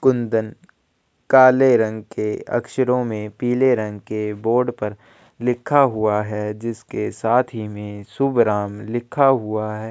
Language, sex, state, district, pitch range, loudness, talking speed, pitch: Hindi, male, Chhattisgarh, Kabirdham, 105-125 Hz, -20 LUFS, 135 wpm, 110 Hz